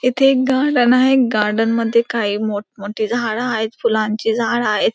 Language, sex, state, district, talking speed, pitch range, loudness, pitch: Marathi, female, Maharashtra, Pune, 160 wpm, 215-250 Hz, -17 LUFS, 230 Hz